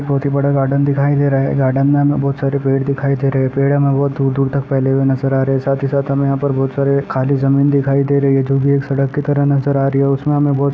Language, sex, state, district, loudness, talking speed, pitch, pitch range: Hindi, male, Uttar Pradesh, Ghazipur, -15 LUFS, 315 wpm, 140 Hz, 135-140 Hz